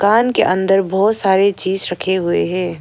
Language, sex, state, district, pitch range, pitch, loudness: Hindi, female, Arunachal Pradesh, Longding, 180-200 Hz, 190 Hz, -15 LUFS